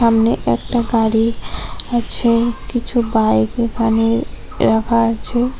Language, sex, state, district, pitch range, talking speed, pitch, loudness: Bengali, female, West Bengal, Cooch Behar, 225-240 Hz, 95 wpm, 230 Hz, -17 LUFS